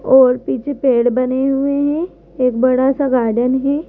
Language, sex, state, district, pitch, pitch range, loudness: Hindi, female, Madhya Pradesh, Bhopal, 260 Hz, 255-280 Hz, -16 LUFS